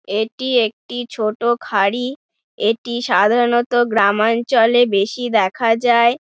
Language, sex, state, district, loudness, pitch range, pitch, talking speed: Bengali, female, West Bengal, Dakshin Dinajpur, -17 LUFS, 220-245 Hz, 235 Hz, 125 wpm